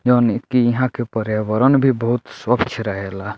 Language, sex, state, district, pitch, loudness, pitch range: Bhojpuri, male, Bihar, Muzaffarpur, 120 Hz, -18 LUFS, 110-125 Hz